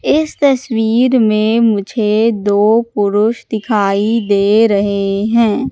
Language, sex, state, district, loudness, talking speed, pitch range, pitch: Hindi, female, Madhya Pradesh, Katni, -13 LUFS, 105 wpm, 205-230 Hz, 220 Hz